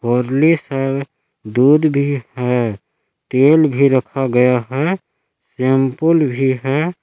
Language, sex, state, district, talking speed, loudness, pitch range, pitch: Hindi, male, Jharkhand, Palamu, 100 wpm, -16 LUFS, 125-150 Hz, 135 Hz